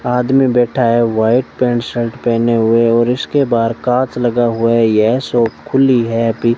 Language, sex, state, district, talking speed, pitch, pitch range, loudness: Hindi, male, Rajasthan, Bikaner, 190 wpm, 120 Hz, 115-125 Hz, -14 LUFS